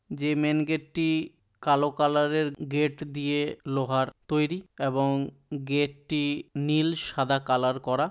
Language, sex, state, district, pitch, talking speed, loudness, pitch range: Bengali, male, West Bengal, Dakshin Dinajpur, 145 Hz, 125 wpm, -27 LUFS, 140-150 Hz